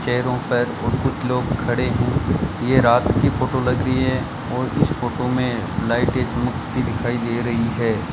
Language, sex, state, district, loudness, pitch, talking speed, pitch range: Hindi, male, Rajasthan, Bikaner, -21 LUFS, 125 Hz, 170 wpm, 120-130 Hz